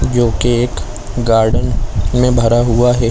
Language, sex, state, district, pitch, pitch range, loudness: Hindi, male, Chhattisgarh, Korba, 120 Hz, 110-120 Hz, -14 LUFS